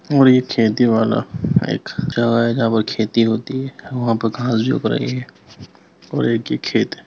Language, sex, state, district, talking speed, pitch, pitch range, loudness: Hindi, male, Bihar, Lakhisarai, 170 wpm, 115 Hz, 115-125 Hz, -18 LUFS